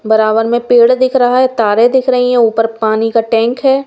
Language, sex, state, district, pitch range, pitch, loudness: Hindi, female, Bihar, West Champaran, 225-255 Hz, 235 Hz, -11 LUFS